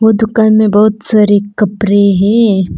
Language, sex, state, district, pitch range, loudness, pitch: Hindi, female, Arunachal Pradesh, Papum Pare, 205-220 Hz, -10 LUFS, 210 Hz